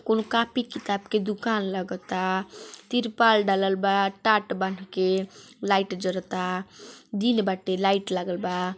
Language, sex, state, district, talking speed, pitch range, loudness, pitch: Bhojpuri, female, Uttar Pradesh, Ghazipur, 130 wpm, 185-220 Hz, -25 LUFS, 195 Hz